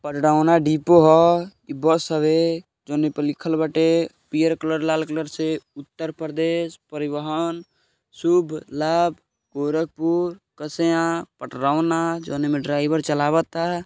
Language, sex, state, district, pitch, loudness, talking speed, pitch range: Bhojpuri, male, Uttar Pradesh, Gorakhpur, 160 Hz, -21 LUFS, 115 wpm, 150-165 Hz